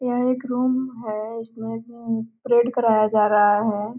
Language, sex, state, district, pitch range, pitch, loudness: Hindi, female, Bihar, Gopalganj, 215-245 Hz, 225 Hz, -21 LUFS